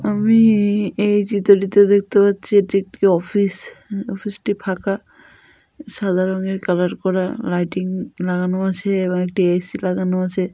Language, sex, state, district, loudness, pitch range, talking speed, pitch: Bengali, female, West Bengal, Dakshin Dinajpur, -18 LUFS, 185-205 Hz, 130 wpm, 195 Hz